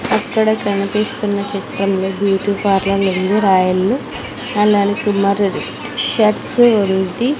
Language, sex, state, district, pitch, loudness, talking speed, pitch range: Telugu, female, Andhra Pradesh, Sri Satya Sai, 200 Hz, -16 LUFS, 95 wpm, 195-210 Hz